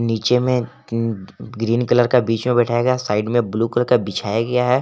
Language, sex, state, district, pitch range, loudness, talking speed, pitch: Hindi, male, Jharkhand, Garhwa, 115-125 Hz, -19 LUFS, 225 wpm, 120 Hz